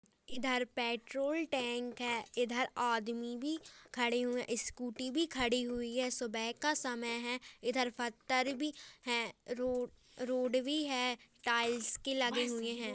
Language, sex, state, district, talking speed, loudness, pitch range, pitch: Hindi, male, Uttarakhand, Tehri Garhwal, 140 wpm, -36 LUFS, 240-255 Hz, 245 Hz